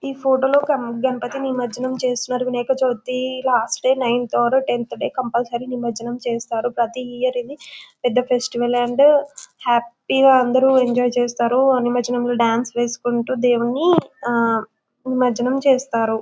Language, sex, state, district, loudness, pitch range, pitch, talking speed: Telugu, female, Telangana, Karimnagar, -19 LUFS, 240-260 Hz, 250 Hz, 135 wpm